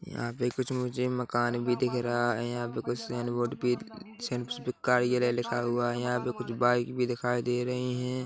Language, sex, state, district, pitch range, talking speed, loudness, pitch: Hindi, male, Chhattisgarh, Korba, 120-125 Hz, 210 wpm, -30 LUFS, 125 Hz